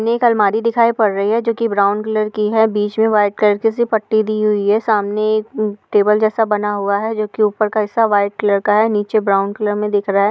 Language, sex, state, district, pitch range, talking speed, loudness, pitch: Hindi, female, Uttar Pradesh, Etah, 205-220 Hz, 275 wpm, -16 LUFS, 215 Hz